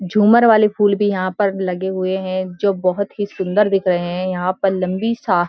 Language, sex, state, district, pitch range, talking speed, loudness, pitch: Hindi, female, Uttarakhand, Uttarkashi, 185-205 Hz, 220 wpm, -17 LUFS, 190 Hz